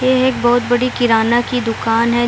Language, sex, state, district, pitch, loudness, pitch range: Hindi, female, Bihar, Gaya, 240 Hz, -15 LUFS, 235-250 Hz